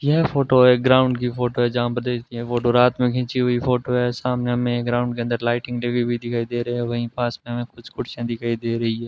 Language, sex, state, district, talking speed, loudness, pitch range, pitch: Hindi, male, Rajasthan, Bikaner, 260 wpm, -21 LUFS, 120-125 Hz, 120 Hz